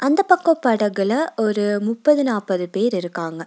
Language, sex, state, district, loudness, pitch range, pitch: Tamil, female, Tamil Nadu, Nilgiris, -19 LUFS, 195-285 Hz, 220 Hz